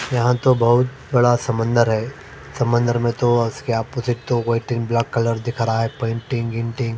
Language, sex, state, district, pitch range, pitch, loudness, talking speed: Hindi, male, Maharashtra, Mumbai Suburban, 115-120 Hz, 120 Hz, -20 LUFS, 180 wpm